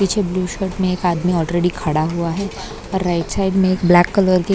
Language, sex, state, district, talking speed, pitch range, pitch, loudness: Hindi, female, Maharashtra, Mumbai Suburban, 235 wpm, 175-190 Hz, 180 Hz, -18 LUFS